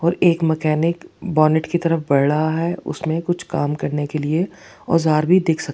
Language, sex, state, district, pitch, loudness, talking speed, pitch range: Hindi, female, Delhi, New Delhi, 160 Hz, -19 LUFS, 200 wpm, 155-170 Hz